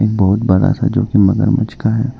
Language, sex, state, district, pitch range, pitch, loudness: Hindi, male, Arunachal Pradesh, Lower Dibang Valley, 105-125 Hz, 110 Hz, -14 LUFS